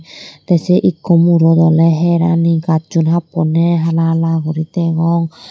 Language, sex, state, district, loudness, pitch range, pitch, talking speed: Chakma, female, Tripura, Dhalai, -13 LUFS, 165-170 Hz, 165 Hz, 130 wpm